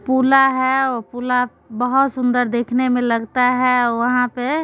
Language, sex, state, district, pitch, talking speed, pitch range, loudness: Maithili, female, Bihar, Supaul, 250 Hz, 170 wpm, 245-260 Hz, -17 LUFS